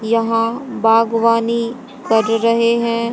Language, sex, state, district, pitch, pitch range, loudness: Hindi, female, Haryana, Jhajjar, 230 Hz, 225-235 Hz, -16 LUFS